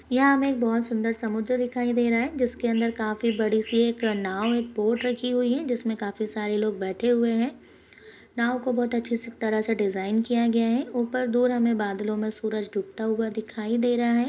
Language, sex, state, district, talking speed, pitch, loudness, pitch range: Hindi, female, Goa, North and South Goa, 215 wpm, 230 Hz, -25 LUFS, 220-240 Hz